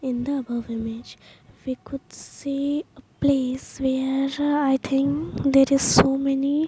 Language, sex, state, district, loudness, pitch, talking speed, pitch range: English, female, Maharashtra, Mumbai Suburban, -23 LUFS, 270 Hz, 150 wpm, 260-280 Hz